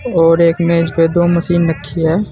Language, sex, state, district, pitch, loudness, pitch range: Hindi, male, Uttar Pradesh, Saharanpur, 170 Hz, -13 LUFS, 165-170 Hz